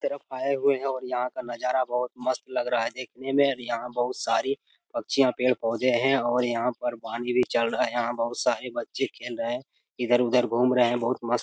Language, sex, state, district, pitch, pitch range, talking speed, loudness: Hindi, male, Bihar, Jamui, 125 Hz, 120-130 Hz, 235 wpm, -26 LUFS